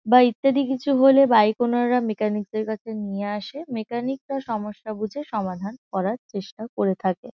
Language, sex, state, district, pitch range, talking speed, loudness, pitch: Bengali, female, West Bengal, Kolkata, 210-255 Hz, 165 wpm, -23 LUFS, 225 Hz